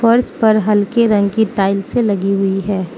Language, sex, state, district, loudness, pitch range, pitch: Hindi, female, Manipur, Imphal West, -15 LUFS, 195-220 Hz, 205 Hz